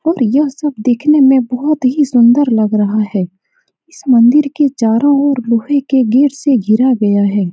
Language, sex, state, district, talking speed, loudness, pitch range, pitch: Hindi, female, Bihar, Saran, 185 wpm, -12 LUFS, 225-285 Hz, 255 Hz